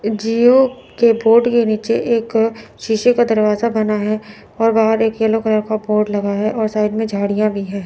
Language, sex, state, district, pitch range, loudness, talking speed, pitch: Hindi, female, Chandigarh, Chandigarh, 215-230 Hz, -16 LUFS, 200 wpm, 220 Hz